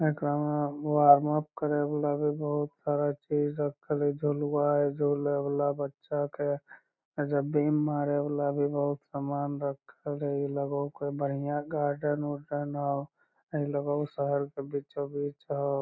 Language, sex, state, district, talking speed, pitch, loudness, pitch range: Magahi, male, Bihar, Lakhisarai, 155 wpm, 145 Hz, -30 LUFS, 140-145 Hz